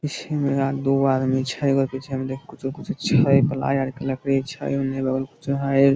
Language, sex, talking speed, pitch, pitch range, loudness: Maithili, male, 240 wpm, 135 Hz, 135-140 Hz, -23 LUFS